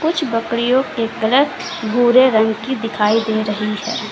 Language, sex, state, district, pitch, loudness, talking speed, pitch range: Hindi, female, Uttar Pradesh, Lalitpur, 230 Hz, -17 LUFS, 160 wpm, 220-260 Hz